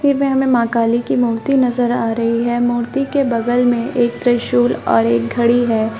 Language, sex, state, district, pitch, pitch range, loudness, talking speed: Hindi, female, Bihar, Madhepura, 240 Hz, 230-250 Hz, -16 LUFS, 210 wpm